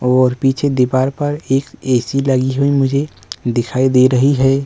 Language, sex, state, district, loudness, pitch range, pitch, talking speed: Hindi, male, Uttar Pradesh, Muzaffarnagar, -15 LUFS, 125-140 Hz, 130 Hz, 155 wpm